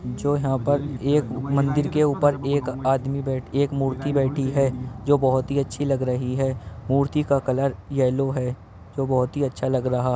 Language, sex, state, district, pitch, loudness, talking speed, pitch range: Hindi, male, Uttar Pradesh, Jyotiba Phule Nagar, 135 Hz, -23 LUFS, 185 wpm, 130-140 Hz